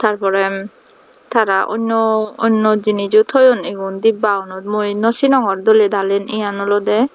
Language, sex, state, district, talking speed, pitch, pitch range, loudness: Chakma, female, Tripura, Dhalai, 140 wpm, 215 Hz, 200-225 Hz, -15 LUFS